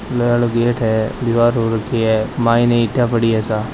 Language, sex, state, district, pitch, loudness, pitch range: Hindi, male, Rajasthan, Nagaur, 115 Hz, -16 LUFS, 110-120 Hz